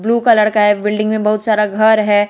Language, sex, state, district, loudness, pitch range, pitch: Hindi, female, Bihar, West Champaran, -13 LUFS, 210-220 Hz, 215 Hz